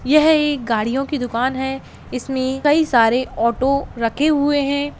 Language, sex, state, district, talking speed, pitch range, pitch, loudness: Hindi, female, Bihar, Begusarai, 155 wpm, 250-290 Hz, 265 Hz, -18 LUFS